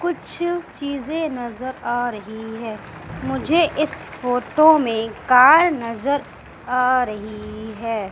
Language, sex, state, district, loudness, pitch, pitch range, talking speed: Hindi, female, Madhya Pradesh, Umaria, -20 LUFS, 250 Hz, 225-300 Hz, 110 wpm